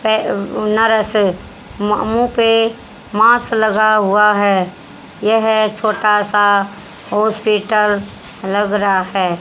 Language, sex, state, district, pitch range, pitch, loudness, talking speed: Hindi, female, Haryana, Jhajjar, 205-220 Hz, 210 Hz, -15 LUFS, 85 wpm